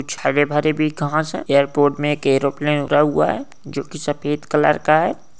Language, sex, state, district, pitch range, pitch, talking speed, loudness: Hindi, male, Uttar Pradesh, Ghazipur, 145-150 Hz, 145 Hz, 190 wpm, -18 LUFS